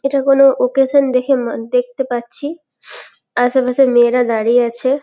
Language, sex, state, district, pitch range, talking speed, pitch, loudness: Bengali, female, West Bengal, Paschim Medinipur, 245-275 Hz, 130 wpm, 255 Hz, -14 LUFS